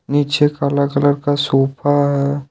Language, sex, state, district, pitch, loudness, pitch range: Hindi, male, Jharkhand, Ranchi, 145 Hz, -16 LUFS, 140-145 Hz